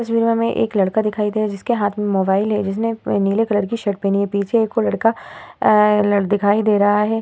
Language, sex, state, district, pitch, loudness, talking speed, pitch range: Hindi, female, Uttar Pradesh, Hamirpur, 210 Hz, -18 LUFS, 240 wpm, 205-225 Hz